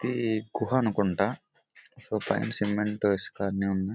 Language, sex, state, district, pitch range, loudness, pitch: Telugu, male, Andhra Pradesh, Visakhapatnam, 100-110 Hz, -29 LUFS, 105 Hz